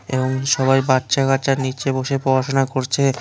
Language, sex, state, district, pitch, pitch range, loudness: Bengali, male, West Bengal, Cooch Behar, 135 Hz, 130-135 Hz, -19 LUFS